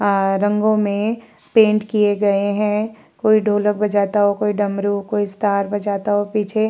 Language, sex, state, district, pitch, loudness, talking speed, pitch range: Hindi, female, Uttar Pradesh, Varanasi, 210 Hz, -18 LUFS, 170 wpm, 205-215 Hz